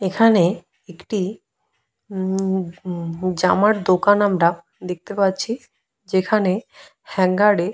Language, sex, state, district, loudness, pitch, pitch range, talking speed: Bengali, female, West Bengal, Purulia, -20 LUFS, 190 Hz, 180-210 Hz, 85 wpm